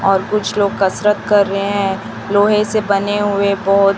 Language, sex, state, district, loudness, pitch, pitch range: Hindi, female, Chhattisgarh, Raipur, -15 LUFS, 200 Hz, 195-205 Hz